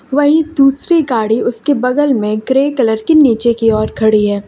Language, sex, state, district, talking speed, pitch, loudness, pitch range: Hindi, female, Uttar Pradesh, Lucknow, 190 wpm, 250 Hz, -12 LUFS, 220-285 Hz